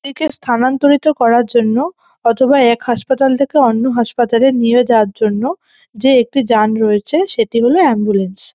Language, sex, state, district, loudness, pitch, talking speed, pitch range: Bengali, female, West Bengal, North 24 Parganas, -13 LUFS, 245 Hz, 145 wpm, 230-275 Hz